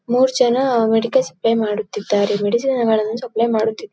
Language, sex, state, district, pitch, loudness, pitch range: Kannada, female, Karnataka, Dakshina Kannada, 225 Hz, -18 LUFS, 215-250 Hz